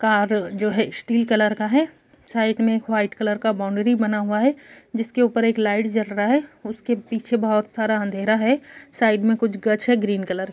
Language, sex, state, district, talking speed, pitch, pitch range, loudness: Hindi, male, Bihar, Gopalganj, 215 wpm, 220 Hz, 210-235 Hz, -21 LUFS